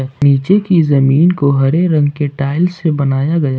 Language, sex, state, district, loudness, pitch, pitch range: Hindi, male, Jharkhand, Ranchi, -13 LUFS, 145 Hz, 140-165 Hz